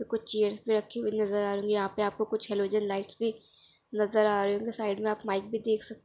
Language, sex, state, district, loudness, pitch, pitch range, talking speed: Hindi, female, Bihar, Samastipur, -30 LUFS, 215 Hz, 205-220 Hz, 270 wpm